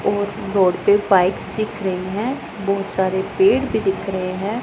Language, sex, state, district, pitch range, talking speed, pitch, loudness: Hindi, female, Punjab, Pathankot, 190-210 Hz, 180 wpm, 200 Hz, -20 LUFS